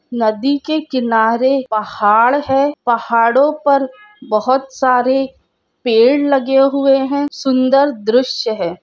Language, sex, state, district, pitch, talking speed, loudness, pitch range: Hindi, female, Andhra Pradesh, Krishna, 265 Hz, 110 wpm, -14 LUFS, 230-275 Hz